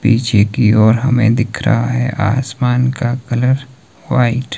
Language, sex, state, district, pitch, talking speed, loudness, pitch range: Hindi, male, Himachal Pradesh, Shimla, 125 Hz, 155 wpm, -14 LUFS, 115-130 Hz